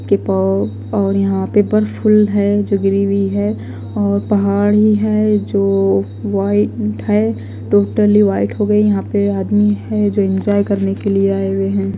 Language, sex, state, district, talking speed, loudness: Hindi, female, Himachal Pradesh, Shimla, 165 wpm, -15 LUFS